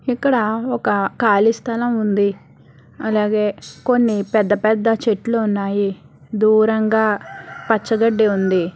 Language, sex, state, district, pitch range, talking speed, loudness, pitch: Telugu, female, Telangana, Hyderabad, 205-225 Hz, 105 wpm, -18 LUFS, 215 Hz